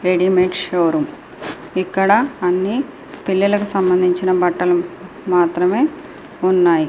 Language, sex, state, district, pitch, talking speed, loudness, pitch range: Telugu, female, Andhra Pradesh, Srikakulam, 185 Hz, 80 wpm, -17 LUFS, 180-205 Hz